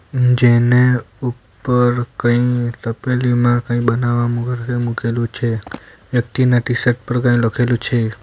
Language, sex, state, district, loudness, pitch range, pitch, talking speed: Gujarati, male, Gujarat, Valsad, -17 LUFS, 120-125 Hz, 120 Hz, 110 wpm